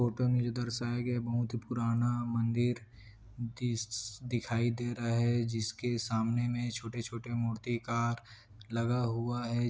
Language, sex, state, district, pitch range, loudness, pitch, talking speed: Hindi, male, Chhattisgarh, Korba, 115-120 Hz, -34 LUFS, 120 Hz, 135 wpm